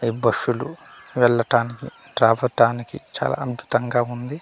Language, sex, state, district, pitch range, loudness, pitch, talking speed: Telugu, male, Andhra Pradesh, Manyam, 115-125 Hz, -21 LUFS, 120 Hz, 95 wpm